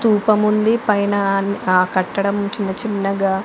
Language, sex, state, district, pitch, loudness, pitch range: Telugu, female, Andhra Pradesh, Anantapur, 200 Hz, -18 LUFS, 195-210 Hz